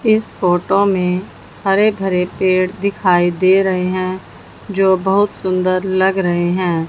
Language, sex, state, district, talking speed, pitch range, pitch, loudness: Hindi, female, Haryana, Jhajjar, 140 wpm, 180-195 Hz, 185 Hz, -16 LUFS